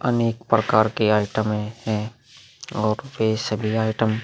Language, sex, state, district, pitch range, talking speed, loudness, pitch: Hindi, male, Uttar Pradesh, Muzaffarnagar, 110-115 Hz, 140 wpm, -22 LUFS, 110 Hz